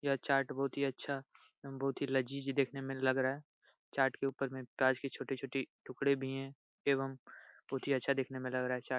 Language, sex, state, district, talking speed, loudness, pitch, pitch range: Hindi, male, Bihar, Supaul, 245 wpm, -37 LUFS, 135 Hz, 130-140 Hz